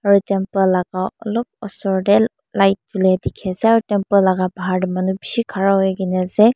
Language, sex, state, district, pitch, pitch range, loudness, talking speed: Nagamese, female, Mizoram, Aizawl, 195 Hz, 185-210 Hz, -18 LUFS, 135 wpm